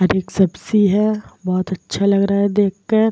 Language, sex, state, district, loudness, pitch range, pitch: Hindi, female, Uttar Pradesh, Varanasi, -18 LUFS, 185-210 Hz, 200 Hz